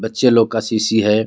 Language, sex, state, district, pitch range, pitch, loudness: Hindi, male, Jharkhand, Garhwa, 110-115 Hz, 110 Hz, -15 LUFS